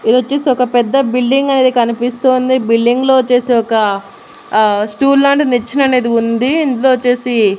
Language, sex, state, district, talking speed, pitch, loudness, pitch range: Telugu, female, Andhra Pradesh, Annamaya, 150 wpm, 250 Hz, -12 LUFS, 235-265 Hz